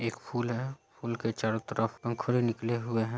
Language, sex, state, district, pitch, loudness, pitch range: Hindi, male, Bihar, Saran, 120 Hz, -32 LUFS, 115-120 Hz